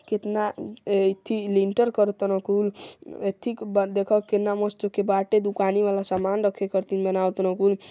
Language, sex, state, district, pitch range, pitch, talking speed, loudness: Hindi, male, Uttar Pradesh, Gorakhpur, 195-210 Hz, 200 Hz, 160 wpm, -24 LUFS